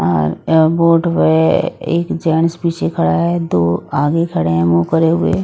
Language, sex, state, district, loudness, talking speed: Hindi, female, Odisha, Sambalpur, -15 LUFS, 175 wpm